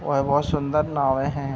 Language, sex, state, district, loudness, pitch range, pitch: Hindi, male, Bihar, Saharsa, -23 LUFS, 140-150 Hz, 140 Hz